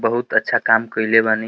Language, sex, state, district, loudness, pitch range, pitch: Bhojpuri, male, Uttar Pradesh, Deoria, -17 LUFS, 110-115 Hz, 115 Hz